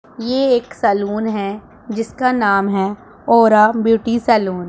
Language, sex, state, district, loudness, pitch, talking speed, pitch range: Hindi, female, Punjab, Pathankot, -16 LUFS, 220 Hz, 140 wpm, 200-235 Hz